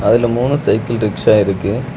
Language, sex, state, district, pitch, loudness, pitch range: Tamil, male, Tamil Nadu, Kanyakumari, 115 Hz, -15 LUFS, 105-120 Hz